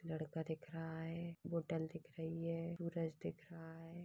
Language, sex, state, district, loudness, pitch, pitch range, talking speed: Hindi, female, Chhattisgarh, Bastar, -46 LUFS, 165 Hz, 160-170 Hz, 180 wpm